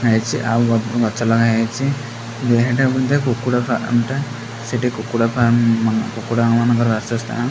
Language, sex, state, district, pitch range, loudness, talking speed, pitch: Odia, male, Odisha, Khordha, 115-125 Hz, -18 LUFS, 135 wpm, 115 Hz